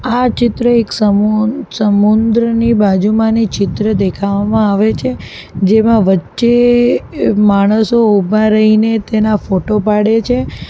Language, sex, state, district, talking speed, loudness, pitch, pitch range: Gujarati, female, Gujarat, Valsad, 105 wpm, -12 LUFS, 215 Hz, 205-225 Hz